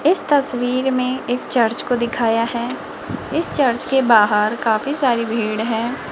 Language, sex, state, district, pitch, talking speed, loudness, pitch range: Hindi, female, Rajasthan, Jaipur, 240 Hz, 155 wpm, -19 LUFS, 230-260 Hz